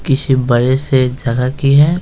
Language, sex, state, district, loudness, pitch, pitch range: Hindi, male, Bihar, Patna, -13 LUFS, 130 Hz, 125-140 Hz